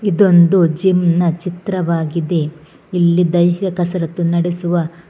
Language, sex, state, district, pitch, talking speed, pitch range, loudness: Kannada, female, Karnataka, Bangalore, 175 Hz, 95 wpm, 170-180 Hz, -15 LUFS